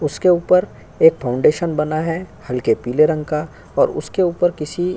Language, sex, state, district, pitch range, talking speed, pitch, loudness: Hindi, male, Uttar Pradesh, Jyotiba Phule Nagar, 150-175 Hz, 180 wpm, 160 Hz, -18 LUFS